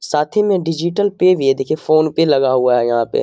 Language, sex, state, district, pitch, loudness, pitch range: Hindi, male, Bihar, Jamui, 155 Hz, -15 LUFS, 135-180 Hz